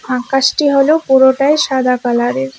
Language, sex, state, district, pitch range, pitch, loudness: Bengali, female, West Bengal, Alipurduar, 255-275 Hz, 265 Hz, -12 LUFS